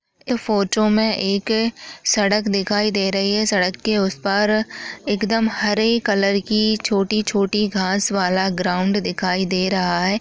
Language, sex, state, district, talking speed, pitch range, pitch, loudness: Chhattisgarhi, female, Chhattisgarh, Jashpur, 155 wpm, 195-215 Hz, 205 Hz, -19 LUFS